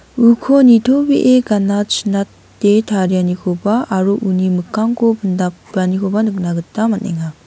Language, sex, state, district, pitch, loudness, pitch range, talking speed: Garo, female, Meghalaya, West Garo Hills, 200 Hz, -14 LUFS, 185-225 Hz, 95 wpm